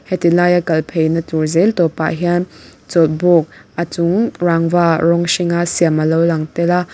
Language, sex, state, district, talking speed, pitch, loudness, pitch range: Mizo, female, Mizoram, Aizawl, 175 wpm, 170 Hz, -15 LUFS, 165-175 Hz